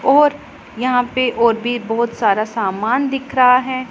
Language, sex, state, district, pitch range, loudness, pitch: Hindi, female, Punjab, Pathankot, 230-260 Hz, -16 LUFS, 250 Hz